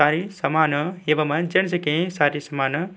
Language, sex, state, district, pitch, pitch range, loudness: Hindi, male, Uttarakhand, Tehri Garhwal, 155 Hz, 145-175 Hz, -22 LUFS